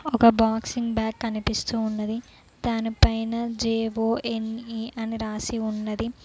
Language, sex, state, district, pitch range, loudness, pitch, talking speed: Telugu, female, Telangana, Mahabubabad, 220-230 Hz, -26 LUFS, 225 Hz, 95 wpm